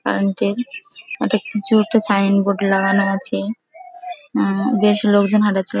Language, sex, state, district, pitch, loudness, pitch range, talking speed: Bengali, female, West Bengal, Jhargram, 210 Hz, -17 LUFS, 195-250 Hz, 145 wpm